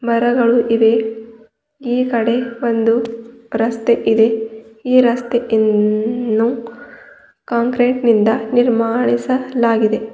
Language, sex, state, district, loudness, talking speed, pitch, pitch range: Kannada, female, Karnataka, Bidar, -16 LUFS, 60 wpm, 235 Hz, 225-245 Hz